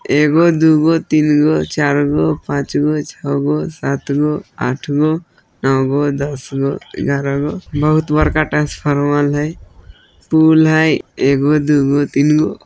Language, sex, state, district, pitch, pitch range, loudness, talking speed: Hindi, male, Bihar, Vaishali, 145 Hz, 140-155 Hz, -15 LUFS, 100 wpm